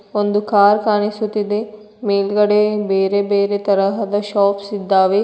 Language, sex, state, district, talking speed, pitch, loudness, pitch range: Kannada, female, Karnataka, Koppal, 105 wpm, 205 Hz, -17 LUFS, 200-210 Hz